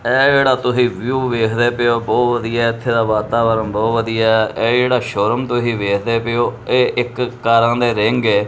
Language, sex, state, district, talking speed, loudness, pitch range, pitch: Punjabi, male, Punjab, Kapurthala, 210 wpm, -16 LUFS, 115-125 Hz, 120 Hz